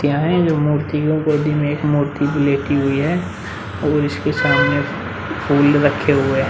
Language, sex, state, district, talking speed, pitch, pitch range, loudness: Hindi, male, Uttar Pradesh, Muzaffarnagar, 175 wpm, 145 Hz, 140-150 Hz, -17 LUFS